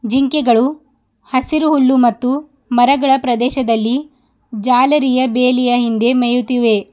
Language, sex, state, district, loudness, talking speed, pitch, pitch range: Kannada, female, Karnataka, Bidar, -14 LUFS, 85 wpm, 255 Hz, 245-270 Hz